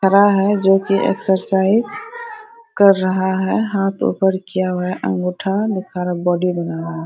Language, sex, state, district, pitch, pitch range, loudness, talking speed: Hindi, female, Bihar, Araria, 190 Hz, 185-200 Hz, -17 LUFS, 180 wpm